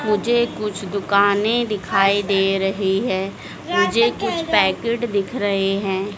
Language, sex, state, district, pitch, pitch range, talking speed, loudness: Hindi, female, Madhya Pradesh, Dhar, 200 Hz, 195-215 Hz, 125 wpm, -19 LUFS